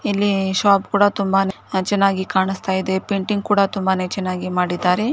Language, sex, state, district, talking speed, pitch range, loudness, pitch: Kannada, female, Karnataka, Gulbarga, 165 wpm, 190-200 Hz, -19 LUFS, 195 Hz